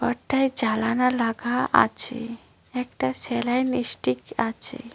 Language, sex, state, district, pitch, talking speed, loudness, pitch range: Bengali, female, West Bengal, Cooch Behar, 240 Hz, 95 wpm, -24 LUFS, 225-250 Hz